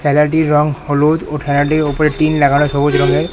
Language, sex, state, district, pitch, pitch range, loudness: Bengali, male, West Bengal, Alipurduar, 150 Hz, 145-155 Hz, -14 LUFS